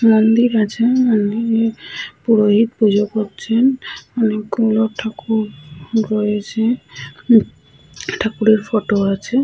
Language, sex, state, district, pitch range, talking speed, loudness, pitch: Bengali, female, West Bengal, Purulia, 215-230 Hz, 85 wpm, -17 LUFS, 220 Hz